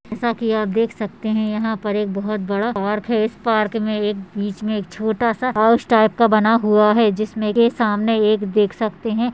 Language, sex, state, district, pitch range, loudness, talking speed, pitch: Hindi, female, Uttarakhand, Tehri Garhwal, 210-225 Hz, -19 LUFS, 225 wpm, 215 Hz